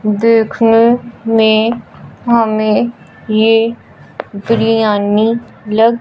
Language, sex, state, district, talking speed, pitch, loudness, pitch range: Hindi, male, Punjab, Fazilka, 60 wpm, 225 Hz, -12 LUFS, 215-230 Hz